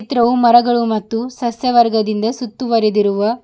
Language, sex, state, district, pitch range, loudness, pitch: Kannada, female, Karnataka, Bidar, 220-240 Hz, -15 LUFS, 235 Hz